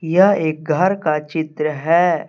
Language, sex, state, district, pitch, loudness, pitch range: Hindi, male, Jharkhand, Deoghar, 160 Hz, -17 LUFS, 155-175 Hz